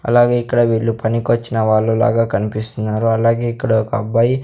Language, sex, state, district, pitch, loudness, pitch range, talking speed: Telugu, male, Andhra Pradesh, Sri Satya Sai, 115 Hz, -16 LUFS, 110-120 Hz, 150 wpm